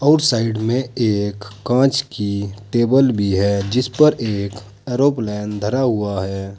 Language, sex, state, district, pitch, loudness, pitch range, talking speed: Hindi, male, Uttar Pradesh, Saharanpur, 110 Hz, -18 LUFS, 100-130 Hz, 145 wpm